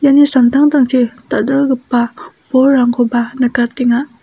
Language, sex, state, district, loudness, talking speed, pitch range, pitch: Garo, female, Meghalaya, South Garo Hills, -13 LUFS, 70 wpm, 240-275 Hz, 255 Hz